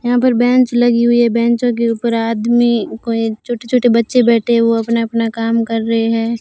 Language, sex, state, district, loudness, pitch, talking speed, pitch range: Hindi, female, Rajasthan, Bikaner, -14 LUFS, 235 Hz, 195 wpm, 230-240 Hz